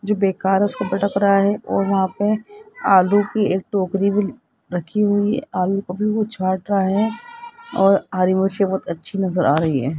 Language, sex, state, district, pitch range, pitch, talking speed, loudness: Hindi, male, Rajasthan, Jaipur, 190-210 Hz, 195 Hz, 170 wpm, -19 LUFS